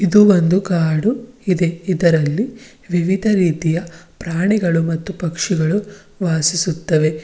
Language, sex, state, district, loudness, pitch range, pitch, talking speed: Kannada, female, Karnataka, Bidar, -17 LUFS, 165-200 Hz, 175 Hz, 90 wpm